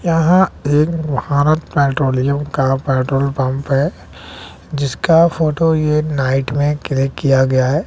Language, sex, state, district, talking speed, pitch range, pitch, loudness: Hindi, male, Bihar, West Champaran, 130 wpm, 135-150 Hz, 140 Hz, -16 LUFS